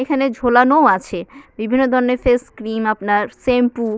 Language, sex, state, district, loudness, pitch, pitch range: Bengali, female, West Bengal, Purulia, -16 LUFS, 245 Hz, 220-260 Hz